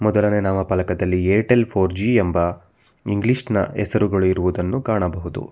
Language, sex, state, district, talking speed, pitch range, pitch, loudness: Kannada, male, Karnataka, Bangalore, 110 wpm, 90-110 Hz, 100 Hz, -20 LUFS